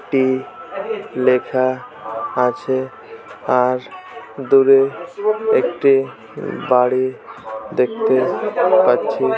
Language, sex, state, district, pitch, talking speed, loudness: Bengali, male, West Bengal, Jalpaiguri, 130 Hz, 60 wpm, -17 LUFS